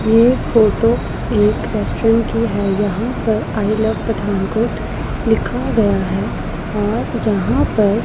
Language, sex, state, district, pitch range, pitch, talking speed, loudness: Hindi, female, Punjab, Pathankot, 205-225 Hz, 220 Hz, 135 wpm, -17 LUFS